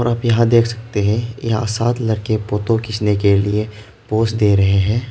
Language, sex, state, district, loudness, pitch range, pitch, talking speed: Hindi, male, Arunachal Pradesh, Lower Dibang Valley, -17 LUFS, 105-115 Hz, 110 Hz, 190 wpm